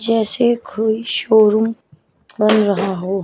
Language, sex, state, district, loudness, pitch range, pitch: Hindi, female, Chandigarh, Chandigarh, -16 LUFS, 210-230 Hz, 220 Hz